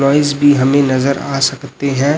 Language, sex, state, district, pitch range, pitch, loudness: Hindi, male, Chhattisgarh, Raipur, 135-145 Hz, 140 Hz, -14 LUFS